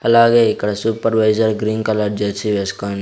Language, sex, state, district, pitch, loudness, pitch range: Telugu, male, Andhra Pradesh, Sri Satya Sai, 110 Hz, -17 LUFS, 105-115 Hz